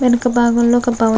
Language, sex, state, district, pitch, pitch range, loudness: Telugu, female, Andhra Pradesh, Chittoor, 240 Hz, 235-245 Hz, -14 LUFS